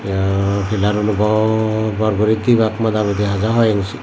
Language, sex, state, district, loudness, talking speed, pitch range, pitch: Chakma, male, Tripura, Dhalai, -17 LUFS, 180 wpm, 100-110 Hz, 105 Hz